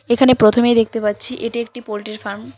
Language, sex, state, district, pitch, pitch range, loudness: Bengali, female, West Bengal, Cooch Behar, 230 Hz, 215-240 Hz, -16 LUFS